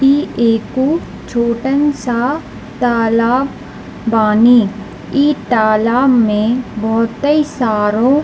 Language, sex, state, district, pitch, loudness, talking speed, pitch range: Hindi, female, Bihar, East Champaran, 240 Hz, -14 LUFS, 85 wpm, 225-270 Hz